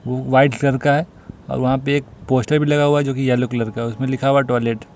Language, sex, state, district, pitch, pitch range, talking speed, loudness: Hindi, male, Jharkhand, Ranchi, 130 Hz, 120-140 Hz, 255 wpm, -18 LUFS